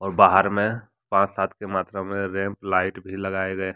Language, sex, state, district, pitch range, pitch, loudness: Hindi, male, Jharkhand, Deoghar, 95-100 Hz, 95 Hz, -23 LUFS